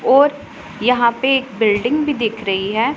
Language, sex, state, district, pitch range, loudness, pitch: Hindi, female, Punjab, Pathankot, 220-270 Hz, -17 LUFS, 245 Hz